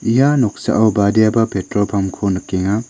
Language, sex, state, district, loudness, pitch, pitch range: Garo, male, Meghalaya, West Garo Hills, -16 LUFS, 105 Hz, 95-110 Hz